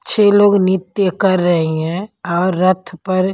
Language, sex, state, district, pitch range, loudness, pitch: Hindi, female, Punjab, Pathankot, 175-200 Hz, -15 LUFS, 185 Hz